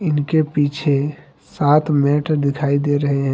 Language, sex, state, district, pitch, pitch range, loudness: Hindi, male, Jharkhand, Deoghar, 145 Hz, 140-150 Hz, -18 LUFS